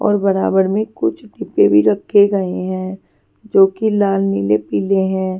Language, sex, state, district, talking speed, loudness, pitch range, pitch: Hindi, female, Punjab, Pathankot, 165 wpm, -16 LUFS, 185-205 Hz, 195 Hz